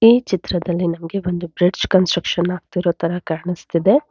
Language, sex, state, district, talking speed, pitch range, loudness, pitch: Kannada, female, Karnataka, Bangalore, 130 wpm, 175-190 Hz, -19 LUFS, 175 Hz